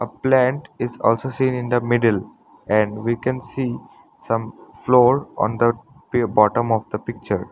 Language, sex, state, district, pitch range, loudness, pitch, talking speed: English, male, Assam, Sonitpur, 115-130 Hz, -20 LUFS, 120 Hz, 160 wpm